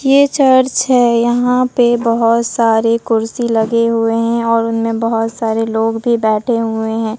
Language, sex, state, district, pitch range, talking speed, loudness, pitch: Hindi, female, Bihar, Katihar, 225-240 Hz, 165 wpm, -14 LUFS, 230 Hz